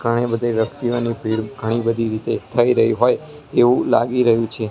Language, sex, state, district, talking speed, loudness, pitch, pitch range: Gujarati, male, Gujarat, Gandhinagar, 180 wpm, -19 LUFS, 115 Hz, 110-120 Hz